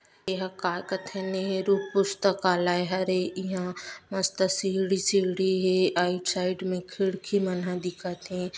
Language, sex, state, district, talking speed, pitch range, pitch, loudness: Chhattisgarhi, female, Chhattisgarh, Bastar, 140 wpm, 180-190 Hz, 185 Hz, -27 LUFS